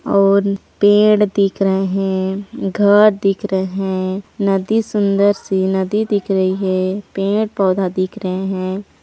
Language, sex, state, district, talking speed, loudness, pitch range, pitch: Chhattisgarhi, female, Chhattisgarh, Sarguja, 135 wpm, -16 LUFS, 190-205 Hz, 195 Hz